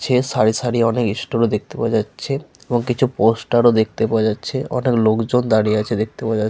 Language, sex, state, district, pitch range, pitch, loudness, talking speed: Bengali, male, West Bengal, Paschim Medinipur, 110-125 Hz, 115 Hz, -18 LUFS, 205 wpm